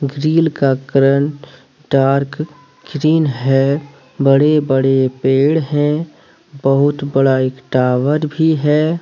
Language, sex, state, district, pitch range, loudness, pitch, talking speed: Hindi, male, Jharkhand, Deoghar, 135-150 Hz, -15 LUFS, 140 Hz, 105 wpm